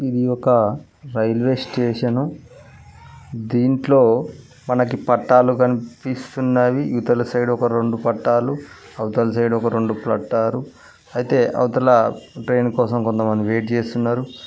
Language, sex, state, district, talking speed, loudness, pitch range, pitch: Telugu, male, Telangana, Mahabubabad, 105 wpm, -19 LUFS, 115-125 Hz, 120 Hz